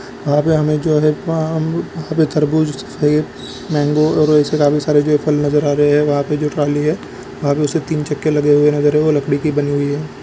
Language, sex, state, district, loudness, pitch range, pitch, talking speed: Hindi, male, Bihar, Lakhisarai, -16 LUFS, 145-155 Hz, 150 Hz, 270 wpm